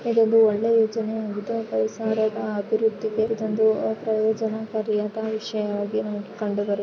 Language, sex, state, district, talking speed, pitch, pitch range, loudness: Kannada, female, Karnataka, Shimoga, 90 wpm, 220 Hz, 210-220 Hz, -24 LUFS